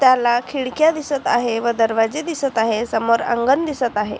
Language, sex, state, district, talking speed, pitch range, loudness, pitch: Marathi, female, Maharashtra, Chandrapur, 170 wpm, 225-275 Hz, -19 LUFS, 240 Hz